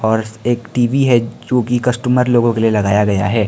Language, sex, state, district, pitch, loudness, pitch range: Hindi, male, Arunachal Pradesh, Lower Dibang Valley, 120 Hz, -15 LUFS, 110-125 Hz